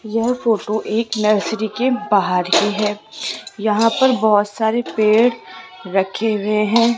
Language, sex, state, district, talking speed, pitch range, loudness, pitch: Hindi, female, Rajasthan, Jaipur, 135 wpm, 210-230 Hz, -18 LUFS, 215 Hz